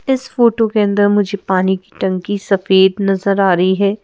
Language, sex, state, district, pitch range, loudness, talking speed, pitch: Hindi, female, Madhya Pradesh, Bhopal, 190-205 Hz, -14 LUFS, 195 wpm, 200 Hz